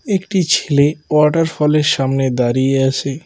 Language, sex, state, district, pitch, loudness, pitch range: Bengali, male, West Bengal, Cooch Behar, 150 Hz, -15 LUFS, 135-160 Hz